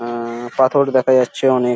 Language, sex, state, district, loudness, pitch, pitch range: Bengali, male, West Bengal, Jhargram, -16 LUFS, 130 Hz, 120-130 Hz